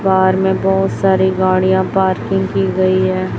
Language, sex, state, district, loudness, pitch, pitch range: Hindi, female, Chhattisgarh, Raipur, -14 LUFS, 190 Hz, 185-190 Hz